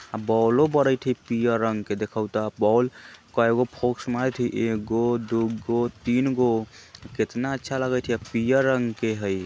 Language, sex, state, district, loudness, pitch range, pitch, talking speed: Bajjika, male, Bihar, Vaishali, -24 LUFS, 110-125 Hz, 115 Hz, 145 wpm